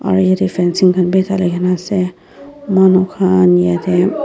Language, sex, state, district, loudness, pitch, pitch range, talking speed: Nagamese, female, Nagaland, Dimapur, -13 LUFS, 180 Hz, 180-190 Hz, 140 wpm